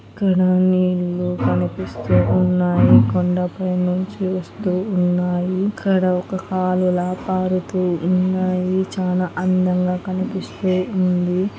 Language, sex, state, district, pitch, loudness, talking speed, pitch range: Telugu, female, Andhra Pradesh, Anantapur, 185 Hz, -19 LUFS, 100 wpm, 180-185 Hz